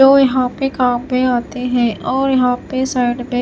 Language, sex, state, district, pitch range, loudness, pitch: Hindi, female, Himachal Pradesh, Shimla, 245-260 Hz, -16 LUFS, 250 Hz